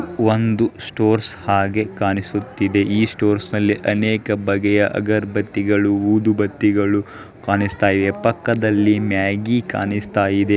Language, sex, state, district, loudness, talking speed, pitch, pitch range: Kannada, male, Karnataka, Belgaum, -18 LUFS, 90 wpm, 105 Hz, 100-110 Hz